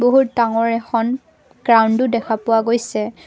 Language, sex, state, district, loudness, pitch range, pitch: Assamese, female, Assam, Kamrup Metropolitan, -17 LUFS, 225-245 Hz, 230 Hz